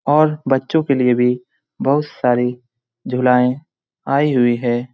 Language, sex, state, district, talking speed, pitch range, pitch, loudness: Hindi, male, Bihar, Lakhisarai, 135 wpm, 125-140 Hz, 125 Hz, -17 LUFS